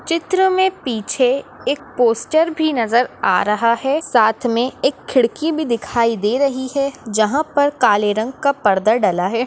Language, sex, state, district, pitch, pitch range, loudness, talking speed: Hindi, female, Maharashtra, Pune, 255 Hz, 230-290 Hz, -17 LUFS, 170 wpm